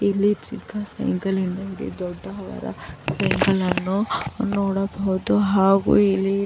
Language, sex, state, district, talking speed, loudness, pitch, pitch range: Kannada, female, Karnataka, Chamarajanagar, 95 wpm, -22 LUFS, 195 Hz, 190-200 Hz